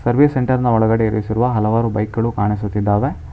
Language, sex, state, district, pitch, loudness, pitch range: Kannada, male, Karnataka, Bangalore, 110 Hz, -17 LUFS, 105-120 Hz